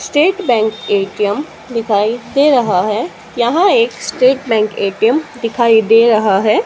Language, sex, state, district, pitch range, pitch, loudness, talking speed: Hindi, female, Haryana, Charkhi Dadri, 215-275 Hz, 230 Hz, -13 LUFS, 145 wpm